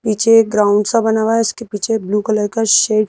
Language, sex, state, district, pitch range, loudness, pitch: Hindi, female, Madhya Pradesh, Bhopal, 210-225 Hz, -14 LUFS, 220 Hz